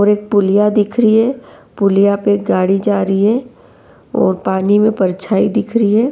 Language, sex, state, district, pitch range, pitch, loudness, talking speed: Hindi, female, Uttar Pradesh, Varanasi, 195-220 Hz, 205 Hz, -14 LUFS, 185 wpm